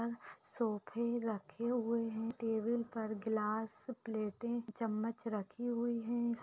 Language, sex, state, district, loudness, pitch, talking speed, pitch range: Hindi, female, Bihar, Purnia, -39 LUFS, 230 Hz, 120 wpm, 220-235 Hz